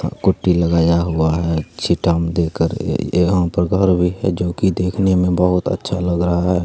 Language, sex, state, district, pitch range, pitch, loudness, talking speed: Hindi, male, Bihar, Lakhisarai, 85-90 Hz, 90 Hz, -17 LUFS, 190 wpm